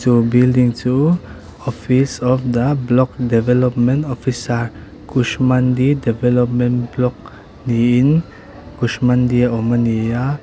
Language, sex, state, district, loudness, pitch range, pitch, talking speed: Mizo, male, Mizoram, Aizawl, -16 LUFS, 120-130 Hz, 125 Hz, 110 wpm